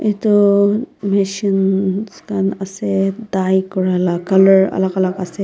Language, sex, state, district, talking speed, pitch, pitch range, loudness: Nagamese, female, Nagaland, Dimapur, 110 wpm, 195 Hz, 190-200 Hz, -16 LUFS